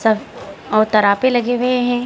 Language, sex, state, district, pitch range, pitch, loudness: Hindi, female, Bihar, Gaya, 215-245 Hz, 245 Hz, -16 LUFS